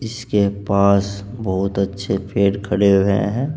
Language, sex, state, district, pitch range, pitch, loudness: Hindi, male, Uttar Pradesh, Saharanpur, 100-105 Hz, 100 Hz, -18 LUFS